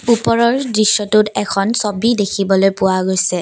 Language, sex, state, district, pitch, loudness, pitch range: Assamese, female, Assam, Kamrup Metropolitan, 205 Hz, -15 LUFS, 195-225 Hz